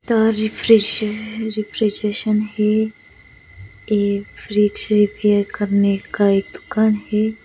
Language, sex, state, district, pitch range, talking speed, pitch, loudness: Hindi, female, Bihar, West Champaran, 205-220 Hz, 90 wpm, 210 Hz, -19 LUFS